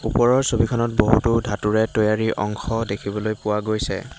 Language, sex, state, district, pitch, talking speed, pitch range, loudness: Assamese, male, Assam, Hailakandi, 110 Hz, 130 wpm, 105-115 Hz, -21 LUFS